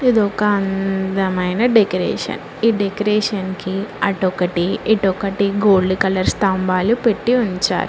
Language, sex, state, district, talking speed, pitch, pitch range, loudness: Telugu, female, Telangana, Mahabubabad, 120 wpm, 195 Hz, 185-210 Hz, -18 LUFS